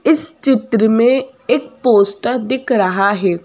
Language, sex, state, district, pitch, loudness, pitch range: Hindi, female, Madhya Pradesh, Bhopal, 250 Hz, -15 LUFS, 210-265 Hz